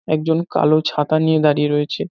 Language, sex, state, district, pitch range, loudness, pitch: Bengali, male, West Bengal, North 24 Parganas, 150-160 Hz, -17 LUFS, 155 Hz